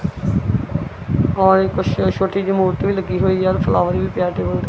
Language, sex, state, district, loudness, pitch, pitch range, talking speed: Punjabi, female, Punjab, Kapurthala, -18 LUFS, 190 Hz, 190-195 Hz, 165 wpm